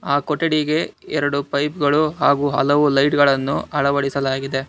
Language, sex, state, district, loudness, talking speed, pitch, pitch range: Kannada, male, Karnataka, Bangalore, -19 LUFS, 130 wpm, 145 Hz, 140-150 Hz